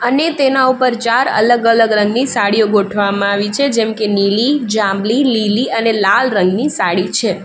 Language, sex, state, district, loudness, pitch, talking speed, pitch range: Gujarati, female, Gujarat, Valsad, -13 LUFS, 220 Hz, 170 wpm, 200-240 Hz